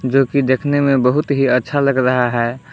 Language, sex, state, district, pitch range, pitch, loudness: Hindi, male, Jharkhand, Palamu, 125-140 Hz, 135 Hz, -16 LUFS